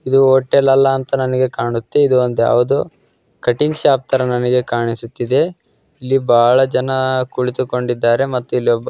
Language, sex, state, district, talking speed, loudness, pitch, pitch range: Kannada, male, Karnataka, Dakshina Kannada, 135 wpm, -15 LUFS, 130 Hz, 120-135 Hz